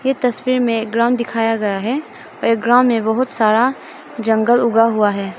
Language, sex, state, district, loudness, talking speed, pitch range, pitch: Hindi, female, Arunachal Pradesh, Papum Pare, -16 LUFS, 190 wpm, 220-245 Hz, 230 Hz